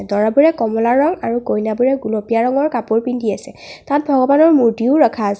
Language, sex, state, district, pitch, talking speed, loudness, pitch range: Assamese, female, Assam, Kamrup Metropolitan, 240 Hz, 165 wpm, -15 LUFS, 225-280 Hz